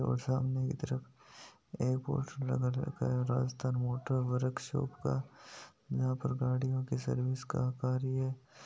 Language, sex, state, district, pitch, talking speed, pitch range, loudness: Hindi, male, Rajasthan, Nagaur, 130 Hz, 165 wpm, 125-135 Hz, -35 LUFS